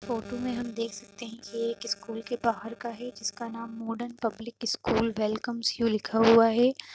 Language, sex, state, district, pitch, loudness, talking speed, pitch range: Hindi, female, Uttar Pradesh, Jyotiba Phule Nagar, 230 Hz, -29 LUFS, 205 wpm, 225-235 Hz